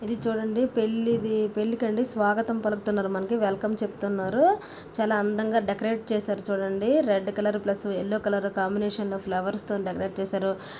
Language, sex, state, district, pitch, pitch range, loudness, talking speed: Telugu, female, Telangana, Nalgonda, 210 Hz, 200-225 Hz, -27 LUFS, 150 wpm